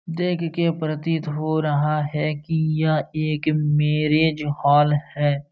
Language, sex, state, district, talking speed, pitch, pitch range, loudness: Hindi, male, Uttar Pradesh, Jalaun, 130 wpm, 155 Hz, 150-160 Hz, -21 LUFS